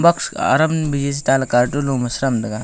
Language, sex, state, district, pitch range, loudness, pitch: Wancho, male, Arunachal Pradesh, Longding, 125-145 Hz, -18 LUFS, 135 Hz